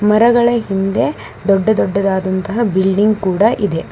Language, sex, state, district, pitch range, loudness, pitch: Kannada, female, Karnataka, Bangalore, 190-215 Hz, -15 LUFS, 200 Hz